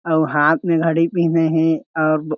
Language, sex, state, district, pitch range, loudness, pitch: Chhattisgarhi, male, Chhattisgarh, Jashpur, 155-165 Hz, -17 LUFS, 160 Hz